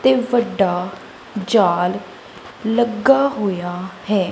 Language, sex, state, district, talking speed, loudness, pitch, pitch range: Punjabi, female, Punjab, Kapurthala, 85 wpm, -18 LUFS, 210 Hz, 185-240 Hz